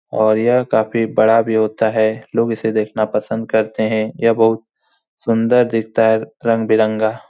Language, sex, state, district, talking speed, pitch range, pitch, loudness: Hindi, male, Bihar, Supaul, 165 wpm, 110-115 Hz, 110 Hz, -16 LUFS